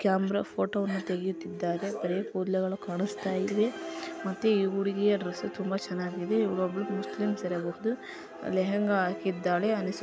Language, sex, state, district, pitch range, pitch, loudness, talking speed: Kannada, female, Karnataka, Dharwad, 185-205 Hz, 195 Hz, -30 LUFS, 115 wpm